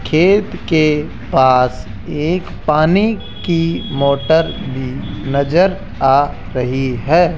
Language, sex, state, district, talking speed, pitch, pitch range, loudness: Hindi, male, Rajasthan, Jaipur, 100 wpm, 150 Hz, 130-165 Hz, -15 LUFS